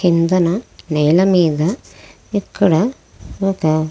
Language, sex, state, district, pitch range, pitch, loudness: Telugu, female, Andhra Pradesh, Krishna, 160-195 Hz, 175 Hz, -16 LUFS